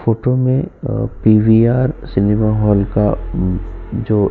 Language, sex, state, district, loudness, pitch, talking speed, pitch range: Hindi, male, Uttar Pradesh, Jyotiba Phule Nagar, -15 LUFS, 110 Hz, 110 wpm, 100-125 Hz